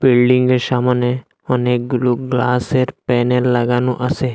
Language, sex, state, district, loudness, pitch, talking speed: Bengali, male, Assam, Hailakandi, -16 LUFS, 125 Hz, 95 wpm